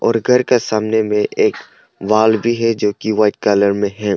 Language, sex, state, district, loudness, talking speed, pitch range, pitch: Hindi, male, Arunachal Pradesh, Longding, -15 LUFS, 215 wpm, 105-115 Hz, 110 Hz